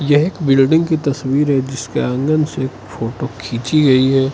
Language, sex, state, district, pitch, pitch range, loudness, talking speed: Hindi, male, Arunachal Pradesh, Lower Dibang Valley, 135 Hz, 130-150 Hz, -16 LUFS, 180 wpm